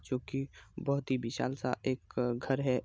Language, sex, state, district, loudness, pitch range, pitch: Hindi, male, Bihar, Araria, -35 LUFS, 125-135 Hz, 130 Hz